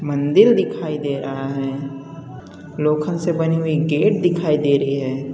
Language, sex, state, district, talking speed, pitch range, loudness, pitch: Hindi, male, Gujarat, Valsad, 155 wpm, 140-160 Hz, -19 LUFS, 150 Hz